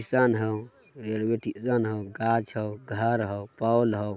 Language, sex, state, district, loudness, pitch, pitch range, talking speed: Magahi, male, Bihar, Jamui, -28 LUFS, 110 Hz, 110-115 Hz, 175 wpm